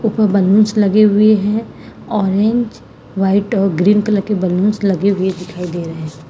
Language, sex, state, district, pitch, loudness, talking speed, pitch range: Hindi, female, Karnataka, Bangalore, 200 Hz, -15 LUFS, 170 wpm, 185-210 Hz